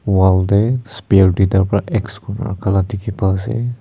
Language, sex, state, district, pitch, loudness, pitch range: Nagamese, male, Nagaland, Kohima, 100 Hz, -16 LUFS, 95-110 Hz